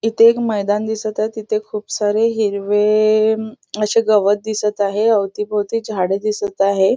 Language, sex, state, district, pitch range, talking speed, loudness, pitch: Marathi, female, Maharashtra, Nagpur, 205-220 Hz, 145 wpm, -17 LUFS, 215 Hz